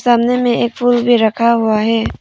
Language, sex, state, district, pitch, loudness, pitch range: Hindi, female, Arunachal Pradesh, Papum Pare, 235 Hz, -13 LUFS, 225-245 Hz